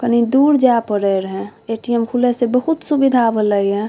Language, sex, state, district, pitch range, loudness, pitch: Maithili, female, Bihar, Saharsa, 210-250 Hz, -16 LUFS, 235 Hz